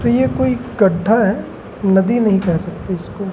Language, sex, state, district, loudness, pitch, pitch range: Hindi, male, Madhya Pradesh, Umaria, -16 LUFS, 190 Hz, 130-200 Hz